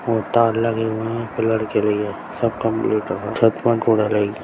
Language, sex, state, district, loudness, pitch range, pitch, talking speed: Hindi, male, Bihar, Bhagalpur, -20 LUFS, 105-115 Hz, 110 Hz, 175 wpm